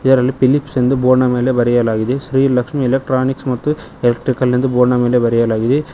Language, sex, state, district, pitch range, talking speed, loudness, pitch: Kannada, male, Karnataka, Koppal, 125-135 Hz, 150 wpm, -15 LUFS, 130 Hz